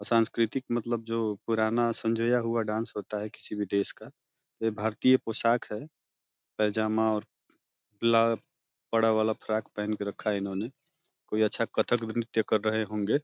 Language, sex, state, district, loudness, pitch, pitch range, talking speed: Hindi, male, Uttar Pradesh, Deoria, -29 LUFS, 115 Hz, 110-115 Hz, 160 wpm